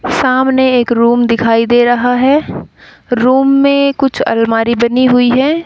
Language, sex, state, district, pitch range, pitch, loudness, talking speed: Hindi, female, Haryana, Rohtak, 235-265 Hz, 245 Hz, -11 LUFS, 150 wpm